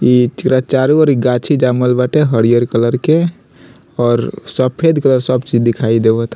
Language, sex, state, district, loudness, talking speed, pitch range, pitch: Bhojpuri, male, Bihar, Muzaffarpur, -13 LUFS, 170 wpm, 120-140 Hz, 125 Hz